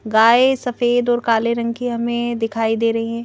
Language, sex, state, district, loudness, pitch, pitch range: Hindi, female, Madhya Pradesh, Bhopal, -18 LUFS, 235 Hz, 230-240 Hz